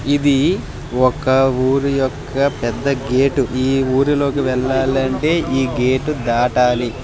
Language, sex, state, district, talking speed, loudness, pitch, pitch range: Telugu, male, Andhra Pradesh, Visakhapatnam, 110 wpm, -17 LUFS, 130 Hz, 130-140 Hz